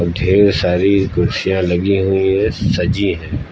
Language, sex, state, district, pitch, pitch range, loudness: Hindi, male, Uttar Pradesh, Lucknow, 95 Hz, 90-100 Hz, -15 LUFS